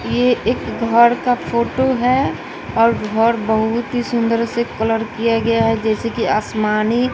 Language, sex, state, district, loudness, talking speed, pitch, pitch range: Hindi, female, Bihar, West Champaran, -17 LUFS, 160 wpm, 230 Hz, 225-240 Hz